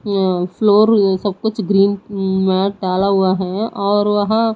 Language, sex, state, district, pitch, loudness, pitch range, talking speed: Hindi, female, Odisha, Nuapada, 200 Hz, -16 LUFS, 190-210 Hz, 160 wpm